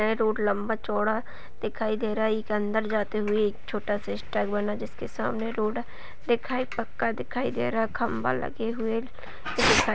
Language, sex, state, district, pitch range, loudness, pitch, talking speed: Hindi, female, Uttar Pradesh, Hamirpur, 210-225 Hz, -28 LUFS, 215 Hz, 165 wpm